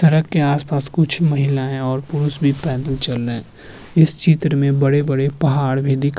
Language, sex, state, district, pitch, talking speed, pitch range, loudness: Hindi, male, Uttarakhand, Tehri Garhwal, 140 Hz, 195 wpm, 135-155 Hz, -17 LUFS